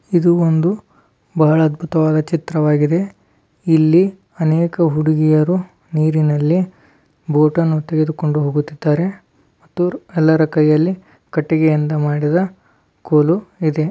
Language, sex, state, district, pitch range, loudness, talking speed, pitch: Kannada, male, Karnataka, Dharwad, 155-170 Hz, -16 LUFS, 80 wpm, 160 Hz